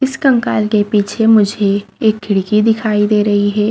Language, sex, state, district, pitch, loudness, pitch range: Hindi, female, Chhattisgarh, Bastar, 210 Hz, -13 LUFS, 205-220 Hz